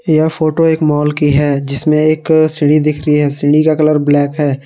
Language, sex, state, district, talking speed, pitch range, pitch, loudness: Hindi, male, Jharkhand, Palamu, 220 wpm, 145-155 Hz, 150 Hz, -12 LUFS